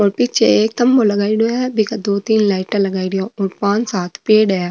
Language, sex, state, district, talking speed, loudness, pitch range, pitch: Marwari, female, Rajasthan, Nagaur, 215 wpm, -16 LUFS, 195-225 Hz, 210 Hz